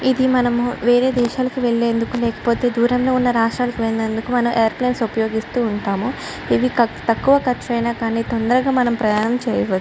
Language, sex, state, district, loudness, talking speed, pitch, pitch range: Telugu, female, Andhra Pradesh, Chittoor, -18 LUFS, 140 wpm, 240 Hz, 230-250 Hz